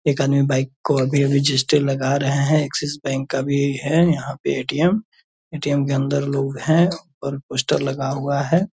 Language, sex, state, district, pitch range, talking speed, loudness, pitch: Hindi, male, Bihar, Purnia, 135-150 Hz, 180 wpm, -20 LUFS, 140 Hz